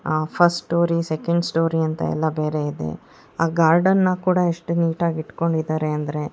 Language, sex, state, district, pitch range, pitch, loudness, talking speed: Kannada, female, Karnataka, Bangalore, 155-170 Hz, 165 Hz, -21 LUFS, 170 wpm